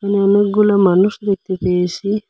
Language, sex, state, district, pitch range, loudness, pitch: Bengali, male, Assam, Hailakandi, 185-205 Hz, -15 LUFS, 200 Hz